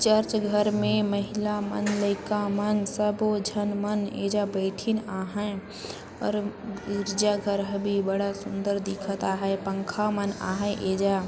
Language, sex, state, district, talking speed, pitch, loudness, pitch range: Chhattisgarhi, female, Chhattisgarh, Sarguja, 135 wpm, 205 Hz, -27 LUFS, 200-210 Hz